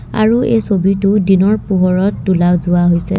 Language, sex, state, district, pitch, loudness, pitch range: Assamese, female, Assam, Kamrup Metropolitan, 195 Hz, -13 LUFS, 185-205 Hz